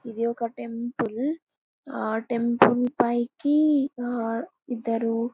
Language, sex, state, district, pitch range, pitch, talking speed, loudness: Telugu, female, Andhra Pradesh, Anantapur, 230-265 Hz, 240 Hz, 100 wpm, -25 LUFS